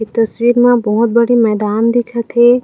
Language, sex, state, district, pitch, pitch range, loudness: Chhattisgarhi, female, Chhattisgarh, Raigarh, 235 Hz, 220-240 Hz, -12 LUFS